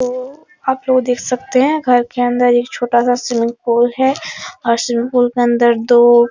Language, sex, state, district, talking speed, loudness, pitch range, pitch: Hindi, female, Bihar, Araria, 210 wpm, -14 LUFS, 240-255 Hz, 245 Hz